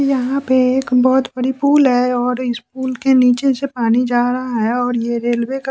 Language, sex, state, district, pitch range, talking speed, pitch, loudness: Hindi, male, Bihar, West Champaran, 245-265 Hz, 230 wpm, 255 Hz, -16 LUFS